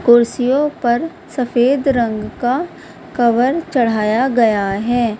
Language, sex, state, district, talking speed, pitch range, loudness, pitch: Hindi, female, Bihar, Purnia, 105 wpm, 230-270 Hz, -16 LUFS, 245 Hz